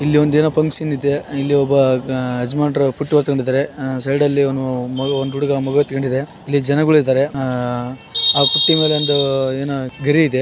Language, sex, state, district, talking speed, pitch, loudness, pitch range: Kannada, male, Karnataka, Raichur, 150 wpm, 140 Hz, -16 LUFS, 130-145 Hz